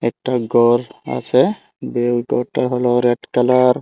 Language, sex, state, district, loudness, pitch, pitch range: Bengali, male, Tripura, Unakoti, -17 LUFS, 120 Hz, 120-125 Hz